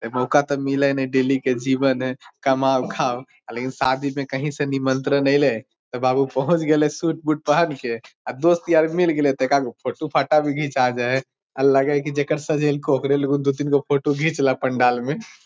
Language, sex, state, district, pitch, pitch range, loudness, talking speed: Magahi, male, Bihar, Lakhisarai, 140 Hz, 130-150 Hz, -21 LUFS, 220 wpm